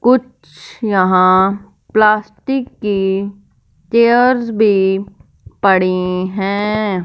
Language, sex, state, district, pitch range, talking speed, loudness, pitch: Hindi, female, Punjab, Fazilka, 190-220 Hz, 70 wpm, -14 LUFS, 200 Hz